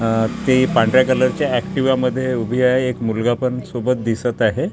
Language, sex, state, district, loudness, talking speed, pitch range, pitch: Marathi, male, Maharashtra, Gondia, -18 LUFS, 180 wpm, 115-130 Hz, 125 Hz